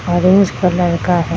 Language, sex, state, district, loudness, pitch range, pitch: Hindi, female, Bihar, Madhepura, -14 LUFS, 175-185 Hz, 180 Hz